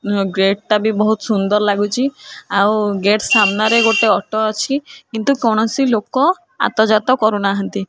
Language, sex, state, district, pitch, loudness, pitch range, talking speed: Odia, female, Odisha, Khordha, 215 Hz, -15 LUFS, 205-230 Hz, 135 wpm